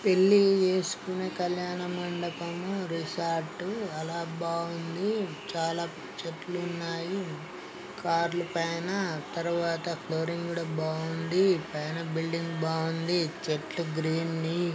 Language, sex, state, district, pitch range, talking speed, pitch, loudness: Telugu, male, Telangana, Nalgonda, 165-180 Hz, 95 wpm, 170 Hz, -30 LUFS